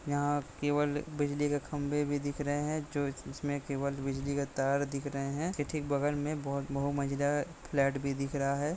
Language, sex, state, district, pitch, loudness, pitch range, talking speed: Hindi, male, Jharkhand, Sahebganj, 145 Hz, -33 LUFS, 140-145 Hz, 190 wpm